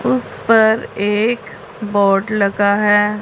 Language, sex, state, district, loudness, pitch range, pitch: Hindi, female, Punjab, Pathankot, -15 LUFS, 200-220 Hz, 205 Hz